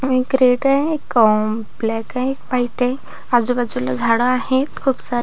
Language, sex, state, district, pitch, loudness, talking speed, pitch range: Marathi, female, Maharashtra, Pune, 250 Hz, -18 LUFS, 150 wpm, 230-260 Hz